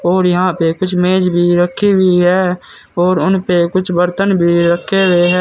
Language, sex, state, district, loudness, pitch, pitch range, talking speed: Hindi, male, Uttar Pradesh, Saharanpur, -13 LUFS, 180 Hz, 175-185 Hz, 190 wpm